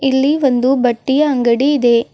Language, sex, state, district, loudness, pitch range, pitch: Kannada, female, Karnataka, Bidar, -14 LUFS, 245-280 Hz, 265 Hz